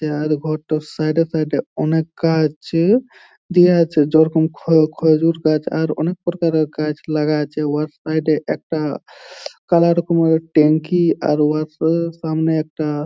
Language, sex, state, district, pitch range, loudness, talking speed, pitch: Bengali, male, West Bengal, Jhargram, 155-165 Hz, -18 LUFS, 150 wpm, 155 Hz